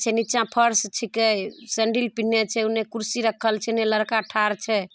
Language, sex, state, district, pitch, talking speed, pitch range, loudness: Maithili, female, Bihar, Samastipur, 225 Hz, 180 wpm, 215-230 Hz, -23 LUFS